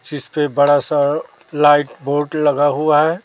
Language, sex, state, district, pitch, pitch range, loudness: Hindi, male, Chhattisgarh, Raipur, 145 Hz, 145-150 Hz, -16 LUFS